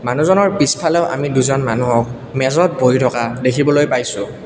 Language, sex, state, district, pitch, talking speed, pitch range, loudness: Assamese, male, Assam, Kamrup Metropolitan, 130 Hz, 135 wpm, 125-150 Hz, -15 LUFS